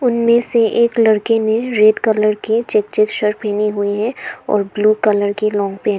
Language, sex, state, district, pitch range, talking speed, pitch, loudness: Hindi, female, Arunachal Pradesh, Papum Pare, 210-230 Hz, 210 wpm, 215 Hz, -15 LUFS